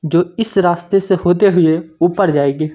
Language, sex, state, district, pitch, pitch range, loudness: Hindi, male, Punjab, Kapurthala, 175 Hz, 160-195 Hz, -14 LUFS